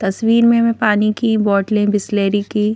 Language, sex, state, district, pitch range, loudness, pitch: Hindi, female, Madhya Pradesh, Bhopal, 205-225 Hz, -15 LUFS, 210 Hz